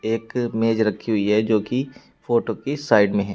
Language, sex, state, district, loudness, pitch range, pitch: Hindi, male, Uttar Pradesh, Shamli, -21 LUFS, 105-120 Hz, 115 Hz